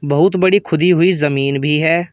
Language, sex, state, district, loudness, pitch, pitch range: Hindi, male, Uttar Pradesh, Shamli, -14 LUFS, 165 Hz, 150-180 Hz